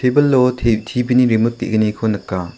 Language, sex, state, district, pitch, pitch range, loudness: Garo, male, Meghalaya, South Garo Hills, 115 Hz, 110-125 Hz, -16 LUFS